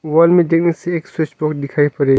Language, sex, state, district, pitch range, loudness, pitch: Hindi, male, Arunachal Pradesh, Longding, 145-170 Hz, -16 LUFS, 160 Hz